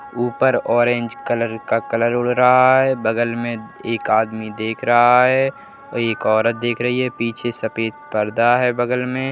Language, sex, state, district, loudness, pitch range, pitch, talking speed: Hindi, male, Uttar Pradesh, Jalaun, -18 LUFS, 115-125 Hz, 120 Hz, 165 wpm